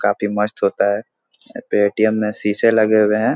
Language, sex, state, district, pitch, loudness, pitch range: Hindi, male, Bihar, Supaul, 105 Hz, -17 LUFS, 105-110 Hz